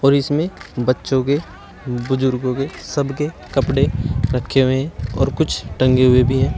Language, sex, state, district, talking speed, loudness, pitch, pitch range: Hindi, male, Uttar Pradesh, Shamli, 155 wpm, -19 LUFS, 135 Hz, 125-140 Hz